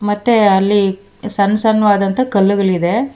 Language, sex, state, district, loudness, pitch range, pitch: Kannada, female, Karnataka, Bangalore, -14 LUFS, 195-220 Hz, 205 Hz